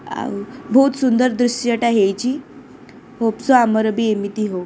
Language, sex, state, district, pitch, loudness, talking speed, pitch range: Odia, female, Odisha, Khordha, 235 Hz, -17 LUFS, 155 wpm, 215-255 Hz